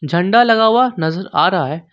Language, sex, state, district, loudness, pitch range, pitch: Hindi, male, Jharkhand, Ranchi, -14 LUFS, 165-225 Hz, 180 Hz